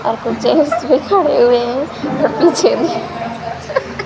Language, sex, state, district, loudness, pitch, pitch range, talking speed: Hindi, female, Chhattisgarh, Raipur, -15 LUFS, 305 Hz, 260-340 Hz, 120 wpm